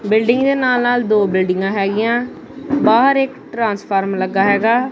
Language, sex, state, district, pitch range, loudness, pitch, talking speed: Punjabi, male, Punjab, Kapurthala, 200-250 Hz, -16 LUFS, 225 Hz, 145 wpm